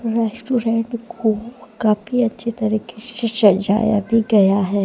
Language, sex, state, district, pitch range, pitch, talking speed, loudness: Hindi, female, Jharkhand, Deoghar, 215-235 Hz, 225 Hz, 125 wpm, -19 LUFS